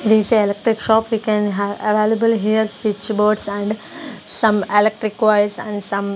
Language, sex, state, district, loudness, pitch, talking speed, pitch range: English, female, Punjab, Kapurthala, -18 LUFS, 215 Hz, 145 wpm, 205-220 Hz